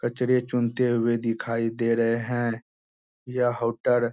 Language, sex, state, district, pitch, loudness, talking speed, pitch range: Hindi, male, Bihar, Bhagalpur, 120 Hz, -25 LUFS, 145 wpm, 115-125 Hz